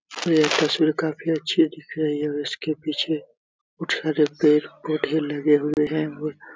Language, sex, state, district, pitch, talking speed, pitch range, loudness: Hindi, male, Bihar, Supaul, 155 Hz, 175 wpm, 150-160 Hz, -23 LUFS